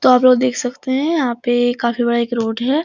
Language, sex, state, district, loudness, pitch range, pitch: Hindi, female, Bihar, Araria, -17 LUFS, 240-255 Hz, 245 Hz